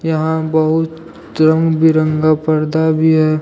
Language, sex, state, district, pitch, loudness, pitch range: Hindi, male, Jharkhand, Deoghar, 160 Hz, -14 LUFS, 155-160 Hz